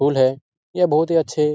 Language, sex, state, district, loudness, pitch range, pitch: Hindi, male, Bihar, Araria, -19 LUFS, 135-165 Hz, 150 Hz